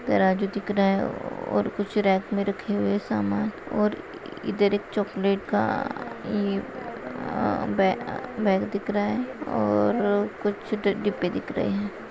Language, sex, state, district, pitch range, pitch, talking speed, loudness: Hindi, female, Chhattisgarh, Raigarh, 195-210 Hz, 205 Hz, 150 wpm, -26 LUFS